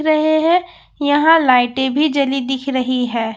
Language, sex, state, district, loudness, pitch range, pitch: Hindi, female, Bihar, Katihar, -15 LUFS, 255-310 Hz, 275 Hz